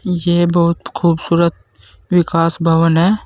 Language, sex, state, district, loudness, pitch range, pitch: Hindi, male, Uttar Pradesh, Saharanpur, -15 LUFS, 165-175 Hz, 170 Hz